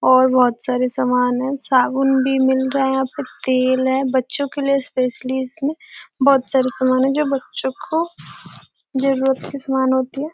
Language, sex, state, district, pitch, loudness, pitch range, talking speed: Hindi, female, Bihar, Gopalganj, 265 Hz, -18 LUFS, 255-275 Hz, 180 wpm